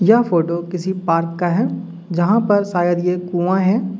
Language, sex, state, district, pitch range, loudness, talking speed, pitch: Hindi, male, Uttar Pradesh, Hamirpur, 175-200 Hz, -18 LUFS, 180 wpm, 180 Hz